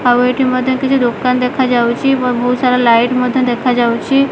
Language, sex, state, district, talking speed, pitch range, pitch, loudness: Odia, female, Odisha, Malkangiri, 155 wpm, 245-260 Hz, 250 Hz, -13 LUFS